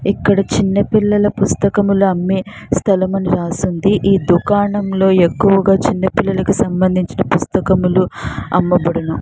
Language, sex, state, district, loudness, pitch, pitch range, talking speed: Telugu, female, Andhra Pradesh, Srikakulam, -15 LUFS, 195 Hz, 185-200 Hz, 100 wpm